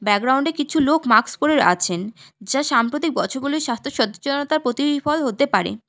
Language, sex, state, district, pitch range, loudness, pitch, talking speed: Bengali, female, West Bengal, Alipurduar, 220-295 Hz, -20 LUFS, 270 Hz, 165 wpm